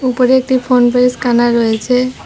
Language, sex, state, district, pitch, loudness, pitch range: Bengali, female, West Bengal, Cooch Behar, 250 Hz, -12 LUFS, 240-255 Hz